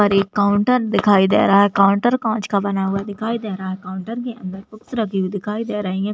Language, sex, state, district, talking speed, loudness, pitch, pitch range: Hindi, female, Maharashtra, Pune, 255 wpm, -19 LUFS, 205 Hz, 195-220 Hz